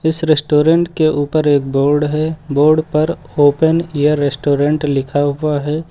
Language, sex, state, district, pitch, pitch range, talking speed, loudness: Hindi, male, Uttar Pradesh, Lucknow, 150 Hz, 145-155 Hz, 150 wpm, -15 LUFS